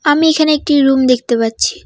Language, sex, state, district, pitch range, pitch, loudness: Bengali, female, West Bengal, Cooch Behar, 255-305 Hz, 290 Hz, -12 LUFS